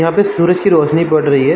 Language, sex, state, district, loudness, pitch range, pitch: Hindi, male, Uttar Pradesh, Varanasi, -12 LUFS, 150-175 Hz, 165 Hz